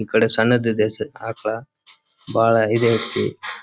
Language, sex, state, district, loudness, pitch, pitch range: Kannada, male, Karnataka, Dharwad, -19 LUFS, 115 Hz, 110-115 Hz